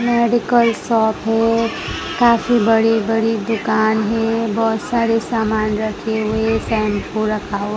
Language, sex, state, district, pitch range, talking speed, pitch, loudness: Hindi, female, Gujarat, Gandhinagar, 215-230 Hz, 125 wpm, 225 Hz, -17 LUFS